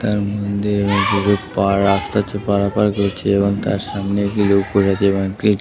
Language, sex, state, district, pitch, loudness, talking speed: Bengali, male, West Bengal, Kolkata, 100 Hz, -17 LUFS, 75 wpm